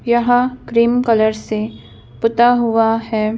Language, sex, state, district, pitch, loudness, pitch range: Hindi, female, Madhya Pradesh, Bhopal, 230 Hz, -16 LUFS, 215-240 Hz